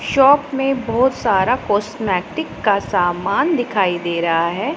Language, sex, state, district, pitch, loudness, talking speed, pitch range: Hindi, female, Punjab, Pathankot, 220 Hz, -17 LUFS, 140 wpm, 185-270 Hz